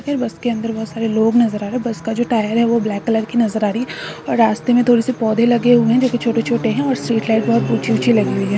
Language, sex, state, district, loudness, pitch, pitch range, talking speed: Hindi, female, Maharashtra, Solapur, -17 LUFS, 230 Hz, 220-240 Hz, 300 wpm